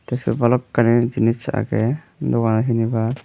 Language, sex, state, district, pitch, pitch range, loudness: Chakma, male, Tripura, Unakoti, 115 Hz, 115-125 Hz, -19 LUFS